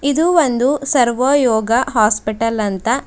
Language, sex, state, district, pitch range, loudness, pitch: Kannada, female, Karnataka, Bidar, 225-275 Hz, -15 LUFS, 245 Hz